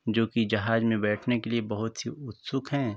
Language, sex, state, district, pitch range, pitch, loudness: Hindi, male, Uttar Pradesh, Varanasi, 110-120 Hz, 115 Hz, -28 LUFS